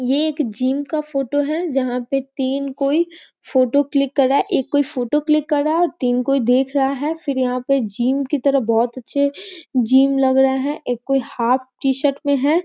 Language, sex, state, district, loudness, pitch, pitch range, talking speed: Hindi, female, Bihar, East Champaran, -19 LUFS, 275 Hz, 260-290 Hz, 220 wpm